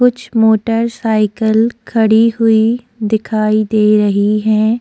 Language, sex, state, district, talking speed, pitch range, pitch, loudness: Hindi, female, Chhattisgarh, Sukma, 100 wpm, 215-230 Hz, 220 Hz, -13 LUFS